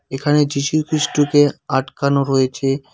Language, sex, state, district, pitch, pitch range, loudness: Bengali, male, West Bengal, Cooch Behar, 140 Hz, 135-150 Hz, -17 LUFS